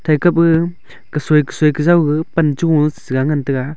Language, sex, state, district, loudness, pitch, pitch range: Wancho, male, Arunachal Pradesh, Longding, -15 LUFS, 150 Hz, 150-165 Hz